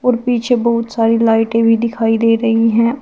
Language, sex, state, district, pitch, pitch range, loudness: Hindi, female, Uttar Pradesh, Shamli, 230 Hz, 225-235 Hz, -14 LUFS